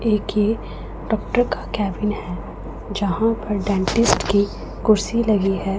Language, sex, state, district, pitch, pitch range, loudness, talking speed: Hindi, female, Punjab, Pathankot, 210 Hz, 200-220 Hz, -21 LUFS, 135 wpm